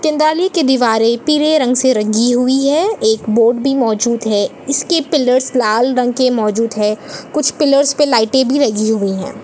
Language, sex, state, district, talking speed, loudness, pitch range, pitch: Hindi, female, Chhattisgarh, Balrampur, 185 wpm, -14 LUFS, 225-290 Hz, 255 Hz